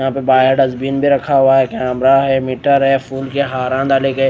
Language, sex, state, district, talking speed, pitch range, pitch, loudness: Hindi, male, Odisha, Nuapada, 235 wpm, 130-135 Hz, 135 Hz, -14 LUFS